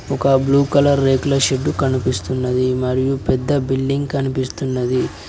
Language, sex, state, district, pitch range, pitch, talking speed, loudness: Telugu, male, Telangana, Mahabubabad, 130-135 Hz, 130 Hz, 115 wpm, -18 LUFS